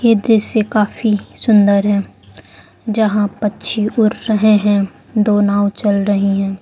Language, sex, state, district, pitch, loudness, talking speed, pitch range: Hindi, female, Arunachal Pradesh, Lower Dibang Valley, 205 Hz, -14 LUFS, 135 wpm, 200-215 Hz